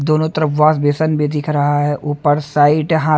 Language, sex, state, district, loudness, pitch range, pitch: Hindi, male, Haryana, Charkhi Dadri, -15 LUFS, 145-155 Hz, 150 Hz